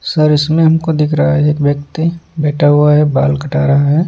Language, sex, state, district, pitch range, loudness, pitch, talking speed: Hindi, male, Punjab, Pathankot, 145-160 Hz, -12 LUFS, 150 Hz, 220 wpm